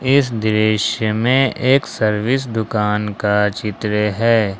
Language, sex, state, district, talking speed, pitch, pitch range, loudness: Hindi, male, Jharkhand, Ranchi, 115 wpm, 110 Hz, 105-125 Hz, -17 LUFS